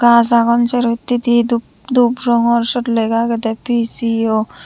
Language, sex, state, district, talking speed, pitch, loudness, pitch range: Chakma, female, Tripura, Unakoti, 130 wpm, 235 Hz, -15 LUFS, 230-240 Hz